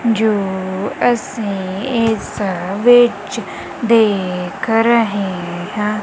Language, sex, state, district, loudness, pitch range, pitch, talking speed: Punjabi, female, Punjab, Kapurthala, -16 LUFS, 190-230 Hz, 210 Hz, 70 wpm